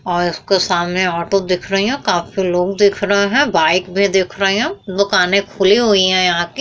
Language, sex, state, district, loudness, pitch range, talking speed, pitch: Hindi, female, Uttar Pradesh, Muzaffarnagar, -15 LUFS, 180-200 Hz, 210 wpm, 195 Hz